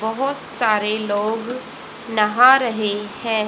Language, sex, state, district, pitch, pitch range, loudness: Hindi, female, Haryana, Rohtak, 220 Hz, 210-245 Hz, -19 LUFS